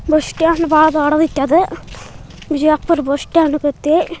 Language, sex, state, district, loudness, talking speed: Kannada, male, Karnataka, Bijapur, -15 LUFS, 85 wpm